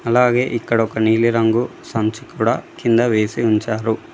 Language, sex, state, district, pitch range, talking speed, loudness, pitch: Telugu, male, Telangana, Mahabubabad, 110-120 Hz, 130 wpm, -18 LUFS, 115 Hz